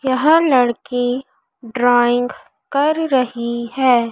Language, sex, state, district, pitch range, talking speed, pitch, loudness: Hindi, female, Madhya Pradesh, Dhar, 240-270 Hz, 85 wpm, 250 Hz, -17 LUFS